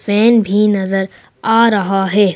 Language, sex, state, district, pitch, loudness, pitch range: Hindi, female, Madhya Pradesh, Bhopal, 205 Hz, -13 LUFS, 195-215 Hz